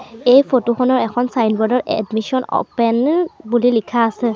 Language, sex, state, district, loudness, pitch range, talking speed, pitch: Assamese, female, Assam, Sonitpur, -16 LUFS, 230-255 Hz, 150 wpm, 245 Hz